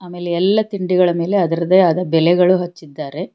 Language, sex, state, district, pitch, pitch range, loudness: Kannada, female, Karnataka, Bangalore, 180 Hz, 170-185 Hz, -16 LUFS